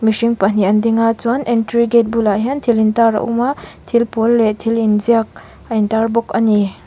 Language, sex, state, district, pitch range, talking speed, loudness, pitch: Mizo, female, Mizoram, Aizawl, 220-235 Hz, 220 wpm, -15 LUFS, 230 Hz